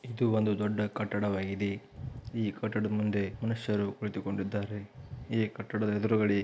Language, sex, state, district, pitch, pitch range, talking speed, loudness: Kannada, male, Karnataka, Raichur, 105 Hz, 100-115 Hz, 120 wpm, -32 LUFS